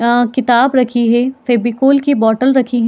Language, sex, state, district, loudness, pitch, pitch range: Hindi, female, Chhattisgarh, Bilaspur, -13 LUFS, 245 Hz, 235-265 Hz